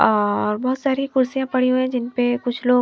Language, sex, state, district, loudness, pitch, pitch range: Hindi, female, Himachal Pradesh, Shimla, -20 LUFS, 255 Hz, 245-260 Hz